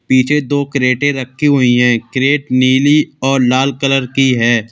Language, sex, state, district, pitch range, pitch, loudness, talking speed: Hindi, male, Uttar Pradesh, Lalitpur, 125-140 Hz, 130 Hz, -13 LUFS, 165 wpm